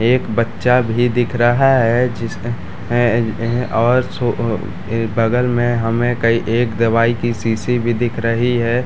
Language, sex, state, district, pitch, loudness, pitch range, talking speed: Hindi, male, Bihar, Madhepura, 120 Hz, -17 LUFS, 115-120 Hz, 175 wpm